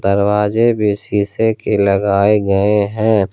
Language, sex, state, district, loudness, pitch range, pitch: Hindi, male, Jharkhand, Ranchi, -15 LUFS, 100-105 Hz, 105 Hz